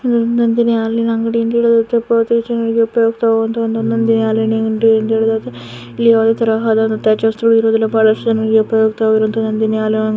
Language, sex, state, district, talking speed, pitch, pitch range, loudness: Kannada, female, Karnataka, Shimoga, 100 wpm, 225 Hz, 220-230 Hz, -14 LUFS